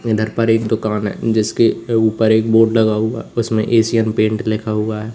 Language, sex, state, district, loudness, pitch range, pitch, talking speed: Hindi, male, Uttar Pradesh, Lalitpur, -16 LUFS, 110-115 Hz, 110 Hz, 210 wpm